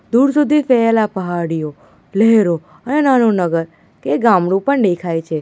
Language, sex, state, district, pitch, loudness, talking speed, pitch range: Gujarati, female, Gujarat, Valsad, 195 Hz, -15 LUFS, 145 wpm, 170-245 Hz